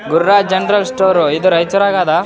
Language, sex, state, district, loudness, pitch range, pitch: Kannada, male, Karnataka, Raichur, -12 LUFS, 170-200 Hz, 190 Hz